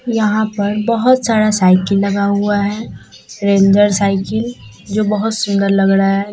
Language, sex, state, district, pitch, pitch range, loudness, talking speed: Hindi, female, Bihar, Katihar, 205 Hz, 195-215 Hz, -14 LUFS, 150 wpm